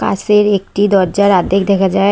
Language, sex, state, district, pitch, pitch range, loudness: Bengali, female, West Bengal, Cooch Behar, 195 Hz, 195-205 Hz, -12 LUFS